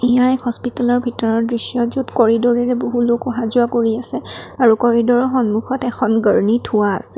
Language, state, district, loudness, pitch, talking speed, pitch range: Assamese, Assam, Kamrup Metropolitan, -16 LUFS, 240 Hz, 165 wpm, 230-245 Hz